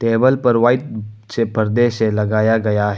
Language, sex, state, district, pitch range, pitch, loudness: Hindi, male, Arunachal Pradesh, Papum Pare, 105-120 Hz, 115 Hz, -16 LUFS